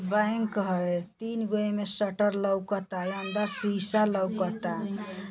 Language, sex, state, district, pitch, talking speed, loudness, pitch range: Bhojpuri, female, Uttar Pradesh, Gorakhpur, 205 Hz, 115 wpm, -29 LUFS, 190-210 Hz